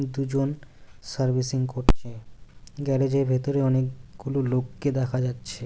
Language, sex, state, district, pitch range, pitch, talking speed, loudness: Bengali, male, West Bengal, Cooch Behar, 125-135 Hz, 130 Hz, 105 wpm, -26 LUFS